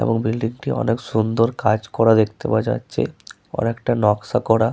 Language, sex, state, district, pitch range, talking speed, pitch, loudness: Bengali, male, West Bengal, Paschim Medinipur, 110-115 Hz, 180 wpm, 115 Hz, -20 LUFS